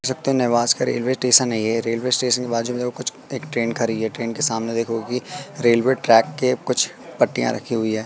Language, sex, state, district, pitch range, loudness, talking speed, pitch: Hindi, male, Madhya Pradesh, Katni, 115-130 Hz, -20 LUFS, 225 wpm, 120 Hz